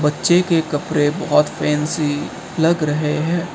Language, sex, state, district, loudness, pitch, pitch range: Hindi, male, Assam, Kamrup Metropolitan, -18 LUFS, 155 Hz, 150-170 Hz